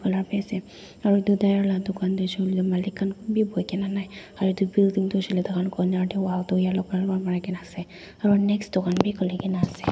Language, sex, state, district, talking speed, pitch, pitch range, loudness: Nagamese, female, Nagaland, Dimapur, 225 wpm, 190 Hz, 185-200 Hz, -25 LUFS